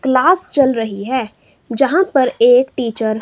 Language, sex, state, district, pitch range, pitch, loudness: Hindi, female, Himachal Pradesh, Shimla, 230-275 Hz, 255 Hz, -15 LUFS